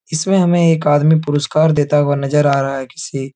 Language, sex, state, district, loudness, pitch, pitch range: Hindi, male, Uttar Pradesh, Etah, -15 LUFS, 150 Hz, 140-160 Hz